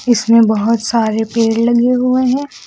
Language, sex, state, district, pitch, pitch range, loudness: Hindi, female, Uttar Pradesh, Lucknow, 230 Hz, 225-250 Hz, -13 LUFS